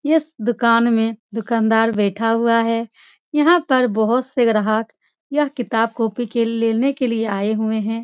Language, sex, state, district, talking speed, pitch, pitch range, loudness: Hindi, female, Bihar, Supaul, 165 wpm, 230 Hz, 225-245 Hz, -18 LUFS